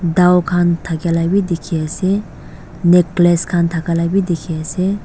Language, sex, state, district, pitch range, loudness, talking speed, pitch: Nagamese, female, Nagaland, Dimapur, 165-180 Hz, -16 LUFS, 120 wpm, 175 Hz